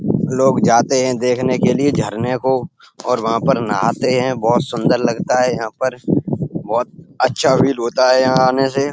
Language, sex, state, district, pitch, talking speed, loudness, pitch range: Hindi, male, Uttar Pradesh, Etah, 130 Hz, 180 wpm, -16 LUFS, 125-135 Hz